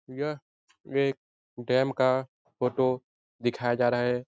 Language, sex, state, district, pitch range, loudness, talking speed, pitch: Hindi, male, Bihar, Jahanabad, 120-135 Hz, -28 LUFS, 125 wpm, 130 Hz